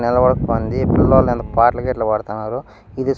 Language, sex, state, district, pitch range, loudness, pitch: Telugu, male, Andhra Pradesh, Annamaya, 110-125 Hz, -17 LUFS, 120 Hz